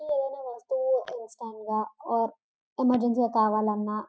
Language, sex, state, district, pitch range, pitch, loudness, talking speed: Telugu, female, Telangana, Karimnagar, 215-260 Hz, 235 Hz, -27 LUFS, 130 wpm